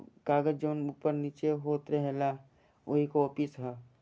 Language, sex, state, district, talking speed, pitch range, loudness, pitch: Bhojpuri, male, Jharkhand, Sahebganj, 150 wpm, 140-150 Hz, -32 LUFS, 145 Hz